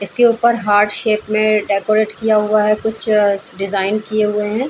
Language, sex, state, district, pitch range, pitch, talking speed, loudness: Hindi, female, Bihar, Saran, 205-220 Hz, 215 Hz, 205 wpm, -15 LUFS